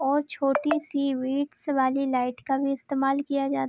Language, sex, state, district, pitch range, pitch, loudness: Hindi, female, Bihar, Araria, 270-285 Hz, 275 Hz, -26 LUFS